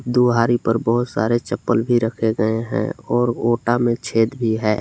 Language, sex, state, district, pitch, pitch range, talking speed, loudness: Hindi, male, Jharkhand, Palamu, 115 Hz, 110-120 Hz, 185 wpm, -19 LUFS